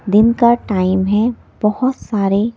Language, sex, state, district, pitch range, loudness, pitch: Hindi, female, Delhi, New Delhi, 200-235 Hz, -15 LUFS, 210 Hz